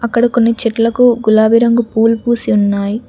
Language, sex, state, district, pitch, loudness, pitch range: Telugu, female, Telangana, Mahabubabad, 230 Hz, -12 LUFS, 220-235 Hz